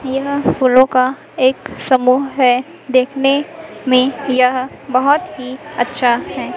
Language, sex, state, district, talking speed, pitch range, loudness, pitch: Hindi, female, Chhattisgarh, Raipur, 120 wpm, 255-280 Hz, -15 LUFS, 260 Hz